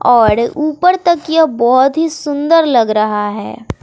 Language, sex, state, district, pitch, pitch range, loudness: Hindi, female, Bihar, West Champaran, 290 Hz, 235-320 Hz, -12 LUFS